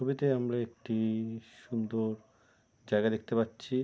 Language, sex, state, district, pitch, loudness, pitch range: Bengali, male, West Bengal, Jalpaiguri, 115 Hz, -33 LUFS, 110-120 Hz